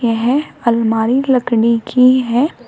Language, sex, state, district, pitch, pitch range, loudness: Hindi, female, Uttar Pradesh, Shamli, 240 Hz, 230-260 Hz, -14 LUFS